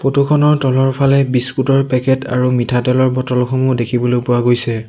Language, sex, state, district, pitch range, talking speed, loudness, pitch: Assamese, male, Assam, Sonitpur, 125-135 Hz, 170 wpm, -14 LUFS, 130 Hz